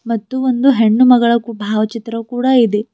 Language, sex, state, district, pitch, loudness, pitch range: Kannada, female, Karnataka, Bidar, 235 Hz, -14 LUFS, 220-250 Hz